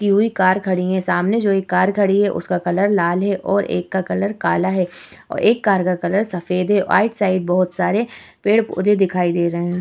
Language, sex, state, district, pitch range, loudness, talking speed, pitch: Hindi, female, Uttar Pradesh, Muzaffarnagar, 180-205 Hz, -18 LUFS, 230 wpm, 190 Hz